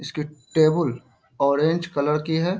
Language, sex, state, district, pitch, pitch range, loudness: Hindi, male, Bihar, Bhagalpur, 150 Hz, 140-160 Hz, -22 LUFS